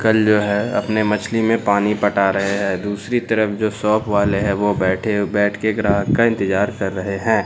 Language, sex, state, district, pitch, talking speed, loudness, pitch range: Hindi, male, Bihar, Katihar, 105 Hz, 210 wpm, -18 LUFS, 100-110 Hz